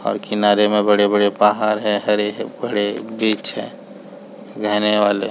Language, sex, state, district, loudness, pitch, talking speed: Hindi, male, Chhattisgarh, Balrampur, -18 LUFS, 105 Hz, 180 wpm